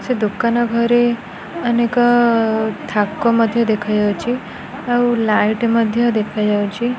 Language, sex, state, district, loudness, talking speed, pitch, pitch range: Odia, female, Odisha, Khordha, -17 LUFS, 105 wpm, 230 Hz, 210-240 Hz